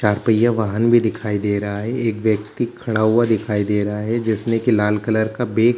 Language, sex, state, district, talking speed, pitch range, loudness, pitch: Hindi, male, Bihar, Gaya, 240 wpm, 105-115 Hz, -19 LUFS, 110 Hz